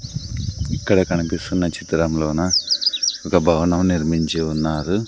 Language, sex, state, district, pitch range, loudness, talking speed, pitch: Telugu, male, Andhra Pradesh, Sri Satya Sai, 80-95 Hz, -19 LUFS, 85 wpm, 85 Hz